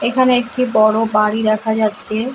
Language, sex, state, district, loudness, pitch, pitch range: Bengali, female, West Bengal, Jalpaiguri, -15 LUFS, 220 Hz, 215-245 Hz